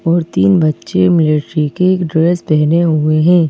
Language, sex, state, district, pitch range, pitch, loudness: Hindi, female, Madhya Pradesh, Bhopal, 150-170 Hz, 160 Hz, -13 LUFS